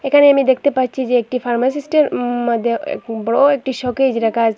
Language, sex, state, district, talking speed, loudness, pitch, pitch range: Bengali, female, Assam, Hailakandi, 195 wpm, -16 LUFS, 255 Hz, 235-280 Hz